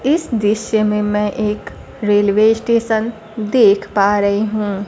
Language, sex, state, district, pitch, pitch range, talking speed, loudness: Hindi, female, Bihar, Kaimur, 210 Hz, 205-225 Hz, 135 wpm, -16 LUFS